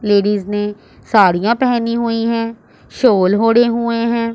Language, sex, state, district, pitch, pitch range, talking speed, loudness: Hindi, female, Punjab, Pathankot, 230 Hz, 205-235 Hz, 140 wpm, -15 LUFS